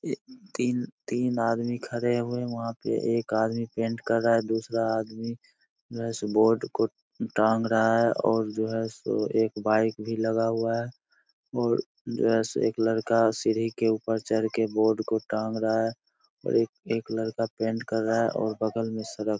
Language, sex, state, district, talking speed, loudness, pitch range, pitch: Hindi, male, Bihar, Begusarai, 185 wpm, -27 LUFS, 110-115 Hz, 115 Hz